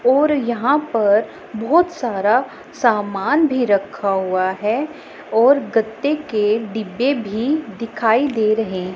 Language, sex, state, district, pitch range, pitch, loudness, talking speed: Hindi, female, Punjab, Pathankot, 210-275 Hz, 225 Hz, -18 LUFS, 120 wpm